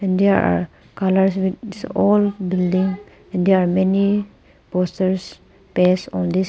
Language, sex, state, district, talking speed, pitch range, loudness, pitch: English, female, Arunachal Pradesh, Papum Pare, 130 wpm, 180-195 Hz, -19 LUFS, 190 Hz